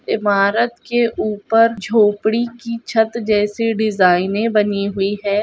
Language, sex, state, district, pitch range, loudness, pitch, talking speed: Hindi, male, Bihar, Jahanabad, 205-230 Hz, -17 LUFS, 215 Hz, 120 wpm